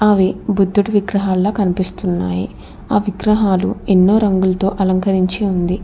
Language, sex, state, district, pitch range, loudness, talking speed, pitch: Telugu, female, Telangana, Hyderabad, 185-205 Hz, -16 LUFS, 105 wpm, 195 Hz